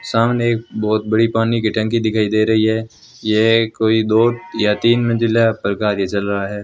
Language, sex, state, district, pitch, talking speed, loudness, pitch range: Hindi, female, Rajasthan, Bikaner, 110 Hz, 205 wpm, -17 LUFS, 110-115 Hz